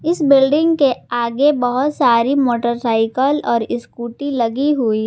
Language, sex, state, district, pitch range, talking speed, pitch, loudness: Hindi, female, Jharkhand, Garhwa, 235-285 Hz, 140 wpm, 255 Hz, -16 LUFS